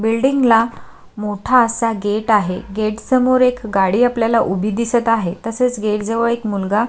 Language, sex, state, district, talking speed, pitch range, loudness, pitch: Marathi, female, Maharashtra, Sindhudurg, 165 wpm, 210-240 Hz, -17 LUFS, 225 Hz